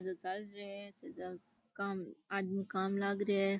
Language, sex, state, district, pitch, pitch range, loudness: Rajasthani, female, Rajasthan, Churu, 200 Hz, 190-200 Hz, -39 LUFS